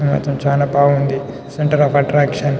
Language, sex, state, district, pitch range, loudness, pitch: Telugu, male, Telangana, Nalgonda, 140-145 Hz, -16 LUFS, 140 Hz